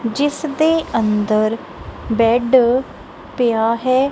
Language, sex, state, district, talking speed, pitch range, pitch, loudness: Punjabi, female, Punjab, Kapurthala, 85 wpm, 225-270 Hz, 240 Hz, -17 LUFS